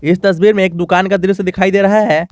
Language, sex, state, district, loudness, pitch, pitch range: Hindi, male, Jharkhand, Garhwa, -12 LUFS, 190 Hz, 180-200 Hz